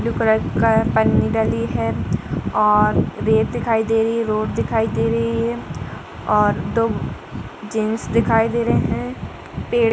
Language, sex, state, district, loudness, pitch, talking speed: Hindi, female, Uttar Pradesh, Jalaun, -19 LUFS, 215 Hz, 165 wpm